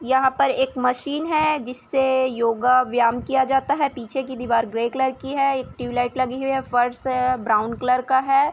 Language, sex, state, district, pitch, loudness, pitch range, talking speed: Hindi, female, Chhattisgarh, Bilaspur, 260 Hz, -21 LUFS, 245-270 Hz, 205 wpm